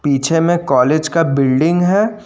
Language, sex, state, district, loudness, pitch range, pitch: Hindi, male, Jharkhand, Ranchi, -14 LUFS, 145-175 Hz, 165 Hz